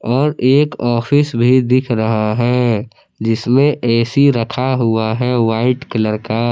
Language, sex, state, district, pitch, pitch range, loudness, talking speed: Hindi, male, Jharkhand, Palamu, 120 Hz, 115-130 Hz, -15 LUFS, 140 wpm